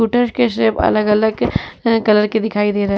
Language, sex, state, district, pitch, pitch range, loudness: Hindi, female, Uttar Pradesh, Muzaffarnagar, 220 Hz, 210-230 Hz, -16 LUFS